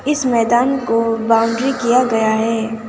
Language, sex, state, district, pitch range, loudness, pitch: Hindi, female, West Bengal, Alipurduar, 225-250 Hz, -16 LUFS, 230 Hz